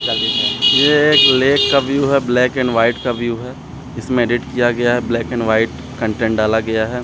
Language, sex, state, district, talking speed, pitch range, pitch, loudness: Hindi, male, Bihar, Jamui, 220 wpm, 115-135 Hz, 125 Hz, -15 LUFS